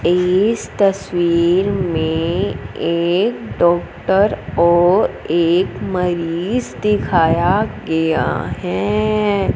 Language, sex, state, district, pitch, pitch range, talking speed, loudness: Hindi, female, Punjab, Fazilka, 170 Hz, 165-190 Hz, 70 wpm, -17 LUFS